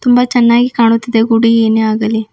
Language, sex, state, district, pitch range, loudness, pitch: Kannada, female, Karnataka, Bidar, 225-240 Hz, -11 LUFS, 230 Hz